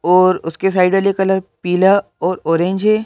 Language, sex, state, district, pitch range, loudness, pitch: Hindi, male, Madhya Pradesh, Bhopal, 180-195 Hz, -15 LUFS, 185 Hz